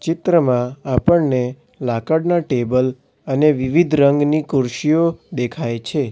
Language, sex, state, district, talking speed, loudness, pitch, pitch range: Gujarati, male, Gujarat, Valsad, 100 wpm, -18 LUFS, 140 Hz, 125-160 Hz